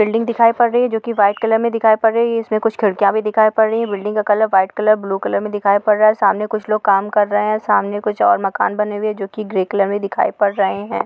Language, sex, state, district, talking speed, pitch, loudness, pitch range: Hindi, female, Bihar, Samastipur, 325 wpm, 210 Hz, -16 LUFS, 200-220 Hz